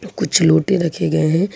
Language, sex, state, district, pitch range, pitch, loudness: Hindi, female, Jharkhand, Ranchi, 160-195 Hz, 170 Hz, -16 LUFS